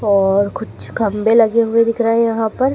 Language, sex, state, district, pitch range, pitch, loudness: Hindi, female, Madhya Pradesh, Dhar, 210-230 Hz, 225 Hz, -15 LUFS